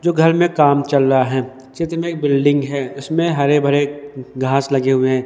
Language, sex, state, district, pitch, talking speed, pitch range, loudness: Hindi, male, Madhya Pradesh, Dhar, 140 Hz, 215 wpm, 130-150 Hz, -16 LUFS